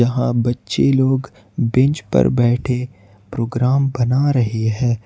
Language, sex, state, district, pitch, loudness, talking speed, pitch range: Hindi, male, Jharkhand, Ranchi, 120 Hz, -18 LUFS, 120 wpm, 110-130 Hz